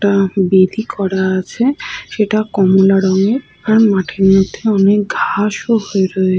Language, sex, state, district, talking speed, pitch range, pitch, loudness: Bengali, female, West Bengal, Jhargram, 150 wpm, 190-215 Hz, 195 Hz, -14 LUFS